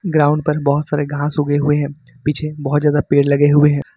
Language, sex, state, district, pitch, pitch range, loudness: Hindi, male, Jharkhand, Ranchi, 145 Hz, 145-150 Hz, -16 LUFS